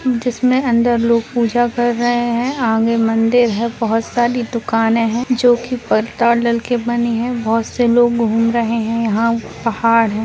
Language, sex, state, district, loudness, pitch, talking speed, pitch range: Hindi, female, Bihar, Madhepura, -16 LUFS, 235 Hz, 165 wpm, 230-240 Hz